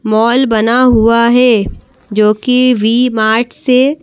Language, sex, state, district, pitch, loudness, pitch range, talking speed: Hindi, female, Madhya Pradesh, Bhopal, 235 Hz, -10 LUFS, 220-250 Hz, 135 wpm